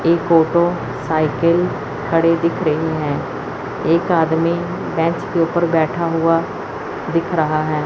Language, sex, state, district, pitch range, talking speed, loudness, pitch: Hindi, female, Chandigarh, Chandigarh, 155-170 Hz, 130 wpm, -18 LUFS, 165 Hz